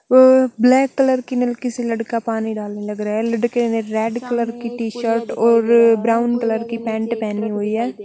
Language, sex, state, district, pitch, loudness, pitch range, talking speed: Hindi, female, Chandigarh, Chandigarh, 230 Hz, -18 LUFS, 225-240 Hz, 195 wpm